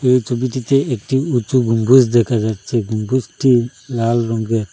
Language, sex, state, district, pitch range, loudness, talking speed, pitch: Bengali, male, Assam, Hailakandi, 115-130 Hz, -16 LUFS, 140 wpm, 120 Hz